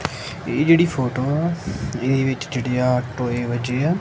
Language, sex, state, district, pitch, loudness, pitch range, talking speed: Punjabi, male, Punjab, Kapurthala, 130 Hz, -21 LUFS, 125-150 Hz, 150 wpm